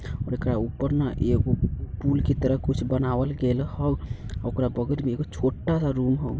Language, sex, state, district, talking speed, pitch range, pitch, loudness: Bajjika, male, Bihar, Vaishali, 185 wpm, 125-140 Hz, 130 Hz, -26 LUFS